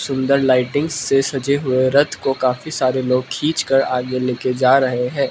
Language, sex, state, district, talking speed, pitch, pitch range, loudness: Hindi, male, Manipur, Imphal West, 190 wpm, 135 Hz, 130-140 Hz, -18 LUFS